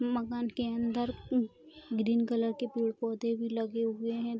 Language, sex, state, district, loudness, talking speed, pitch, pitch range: Hindi, female, Bihar, Araria, -33 LUFS, 175 wpm, 230 Hz, 230-240 Hz